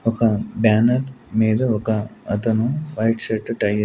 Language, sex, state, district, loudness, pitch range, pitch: Telugu, male, Andhra Pradesh, Sri Satya Sai, -20 LUFS, 110-115 Hz, 110 Hz